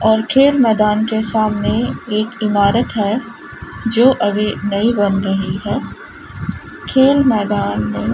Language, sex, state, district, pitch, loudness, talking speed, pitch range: Hindi, female, Rajasthan, Bikaner, 215 Hz, -16 LUFS, 135 wpm, 205-235 Hz